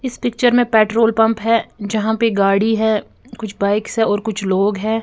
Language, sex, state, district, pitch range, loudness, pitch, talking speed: Hindi, female, Bihar, Patna, 210-230 Hz, -17 LUFS, 220 Hz, 190 wpm